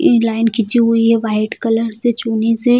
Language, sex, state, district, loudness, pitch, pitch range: Hindi, female, Bihar, Jamui, -15 LUFS, 230 Hz, 225-235 Hz